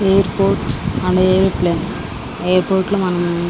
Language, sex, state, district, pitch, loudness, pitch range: Telugu, female, Andhra Pradesh, Srikakulam, 185 Hz, -17 LUFS, 175-190 Hz